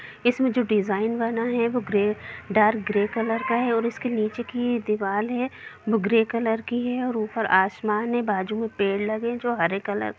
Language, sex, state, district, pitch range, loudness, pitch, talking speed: Hindi, female, Jharkhand, Jamtara, 210-240 Hz, -24 LUFS, 225 Hz, 195 wpm